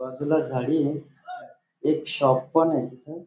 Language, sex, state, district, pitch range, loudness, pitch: Marathi, male, Maharashtra, Dhule, 130-160 Hz, -24 LUFS, 155 Hz